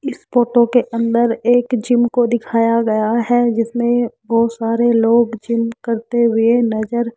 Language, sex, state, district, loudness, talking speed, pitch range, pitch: Hindi, female, Rajasthan, Jaipur, -16 LUFS, 160 wpm, 230-240 Hz, 235 Hz